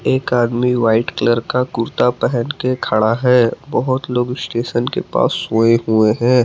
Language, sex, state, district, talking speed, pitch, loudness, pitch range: Hindi, male, Jharkhand, Palamu, 165 wpm, 120 Hz, -16 LUFS, 115-125 Hz